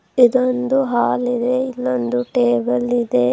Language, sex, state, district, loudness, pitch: Kannada, female, Karnataka, Bidar, -18 LUFS, 240 Hz